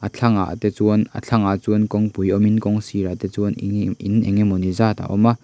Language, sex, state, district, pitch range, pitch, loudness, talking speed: Mizo, male, Mizoram, Aizawl, 100-110 Hz, 105 Hz, -19 LUFS, 230 wpm